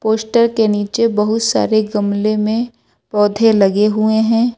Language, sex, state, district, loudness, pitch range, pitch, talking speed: Hindi, female, Uttar Pradesh, Lucknow, -15 LUFS, 210-225 Hz, 220 Hz, 145 wpm